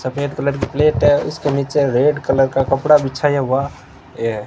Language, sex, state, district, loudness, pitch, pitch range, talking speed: Hindi, male, Rajasthan, Bikaner, -17 LUFS, 140 Hz, 135-145 Hz, 175 wpm